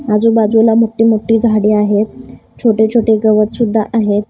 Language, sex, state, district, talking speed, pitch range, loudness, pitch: Marathi, female, Maharashtra, Gondia, 140 wpm, 215-225 Hz, -12 LUFS, 220 Hz